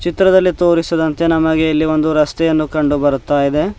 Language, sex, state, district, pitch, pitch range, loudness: Kannada, male, Karnataka, Bidar, 160 Hz, 150-170 Hz, -14 LUFS